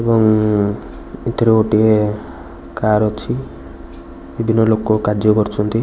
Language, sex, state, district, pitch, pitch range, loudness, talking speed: Odia, male, Odisha, Nuapada, 105 Hz, 85-110 Hz, -16 LUFS, 95 wpm